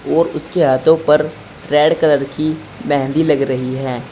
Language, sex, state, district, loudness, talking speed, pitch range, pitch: Hindi, male, Uttar Pradesh, Saharanpur, -16 LUFS, 160 wpm, 135-160 Hz, 150 Hz